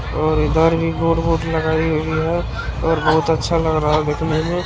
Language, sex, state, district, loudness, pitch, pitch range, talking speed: Hindi, male, Bihar, Bhagalpur, -18 LUFS, 160 Hz, 155-165 Hz, 205 wpm